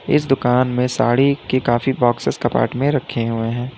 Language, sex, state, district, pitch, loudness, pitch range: Hindi, male, Uttar Pradesh, Lalitpur, 125 Hz, -18 LUFS, 120-135 Hz